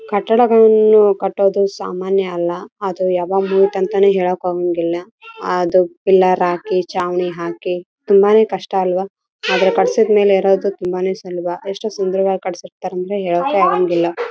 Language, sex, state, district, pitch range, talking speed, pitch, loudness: Kannada, female, Karnataka, Raichur, 180-200 Hz, 60 wpm, 190 Hz, -16 LUFS